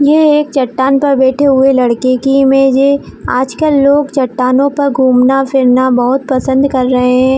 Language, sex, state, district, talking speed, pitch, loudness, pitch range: Hindi, female, Jharkhand, Jamtara, 170 wpm, 265 Hz, -10 LUFS, 255-280 Hz